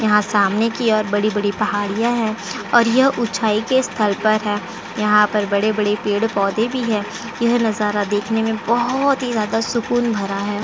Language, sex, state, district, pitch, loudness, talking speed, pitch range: Hindi, female, Uttar Pradesh, Jyotiba Phule Nagar, 215 Hz, -18 LUFS, 175 wpm, 205-230 Hz